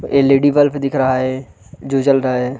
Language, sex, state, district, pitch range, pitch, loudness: Hindi, male, Chhattisgarh, Balrampur, 130-140 Hz, 135 Hz, -15 LUFS